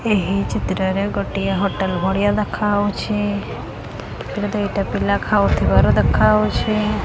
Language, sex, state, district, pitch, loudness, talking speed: Odia, female, Odisha, Khordha, 195 Hz, -19 LUFS, 110 wpm